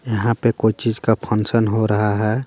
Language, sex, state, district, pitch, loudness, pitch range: Hindi, female, Jharkhand, Garhwa, 110 Hz, -19 LUFS, 110-115 Hz